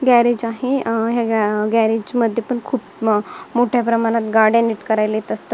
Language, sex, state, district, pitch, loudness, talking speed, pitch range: Marathi, female, Maharashtra, Dhule, 230 Hz, -18 LUFS, 150 wpm, 220-240 Hz